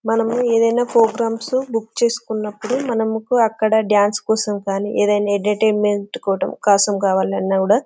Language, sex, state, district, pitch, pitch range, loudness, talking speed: Telugu, female, Telangana, Karimnagar, 220 Hz, 205-230 Hz, -18 LUFS, 135 wpm